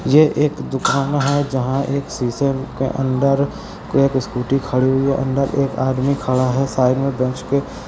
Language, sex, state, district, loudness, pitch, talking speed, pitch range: Hindi, male, Uttar Pradesh, Jalaun, -18 LUFS, 135 Hz, 185 wpm, 130-140 Hz